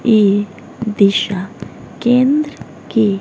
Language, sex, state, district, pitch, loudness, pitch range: Hindi, female, Haryana, Rohtak, 215 Hz, -15 LUFS, 200-240 Hz